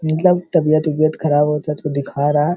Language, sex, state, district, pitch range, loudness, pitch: Hindi, male, Uttar Pradesh, Hamirpur, 150-160 Hz, -17 LUFS, 155 Hz